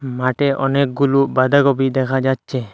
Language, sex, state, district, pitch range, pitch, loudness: Bengali, male, Assam, Hailakandi, 130-140 Hz, 135 Hz, -17 LUFS